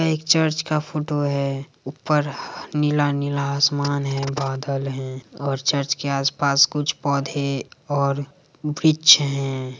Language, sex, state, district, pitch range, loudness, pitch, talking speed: Hindi, male, Bihar, Madhepura, 140-150 Hz, -21 LUFS, 140 Hz, 130 wpm